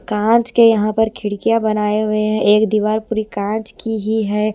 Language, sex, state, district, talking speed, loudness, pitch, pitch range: Hindi, female, Bihar, West Champaran, 200 wpm, -16 LUFS, 215 Hz, 210-220 Hz